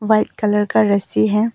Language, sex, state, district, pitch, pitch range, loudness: Hindi, female, Arunachal Pradesh, Papum Pare, 210 Hz, 205-215 Hz, -17 LUFS